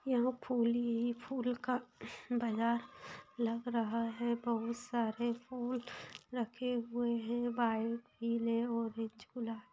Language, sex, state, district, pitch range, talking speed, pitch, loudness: Hindi, female, Bihar, Lakhisarai, 230-245 Hz, 130 wpm, 235 Hz, -37 LUFS